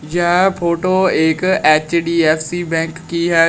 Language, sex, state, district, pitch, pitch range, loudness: Hindi, male, Uttar Pradesh, Shamli, 170 Hz, 165-175 Hz, -15 LUFS